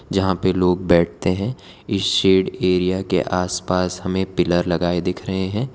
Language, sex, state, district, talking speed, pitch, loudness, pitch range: Hindi, male, Gujarat, Valsad, 165 wpm, 90 Hz, -20 LUFS, 90-95 Hz